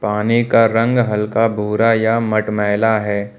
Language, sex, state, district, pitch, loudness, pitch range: Hindi, male, Uttar Pradesh, Lucknow, 110 Hz, -16 LUFS, 105-115 Hz